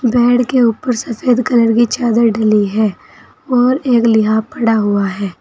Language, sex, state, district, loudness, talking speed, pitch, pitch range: Hindi, female, Uttar Pradesh, Saharanpur, -13 LUFS, 165 wpm, 235 Hz, 215-245 Hz